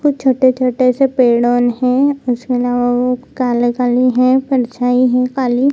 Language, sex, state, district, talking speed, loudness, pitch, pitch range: Hindi, female, Bihar, Jamui, 145 wpm, -14 LUFS, 250 Hz, 245-260 Hz